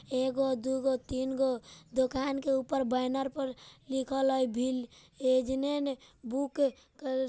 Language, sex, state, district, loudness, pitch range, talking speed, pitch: Bajjika, male, Bihar, Vaishali, -32 LUFS, 255-270 Hz, 140 wpm, 265 Hz